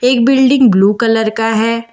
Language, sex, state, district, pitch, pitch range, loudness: Hindi, female, Bihar, Katihar, 230 Hz, 225-250 Hz, -11 LUFS